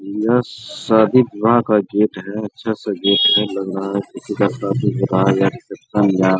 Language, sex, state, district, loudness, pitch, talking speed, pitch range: Hindi, male, Bihar, Araria, -17 LUFS, 105 Hz, 195 wpm, 100-110 Hz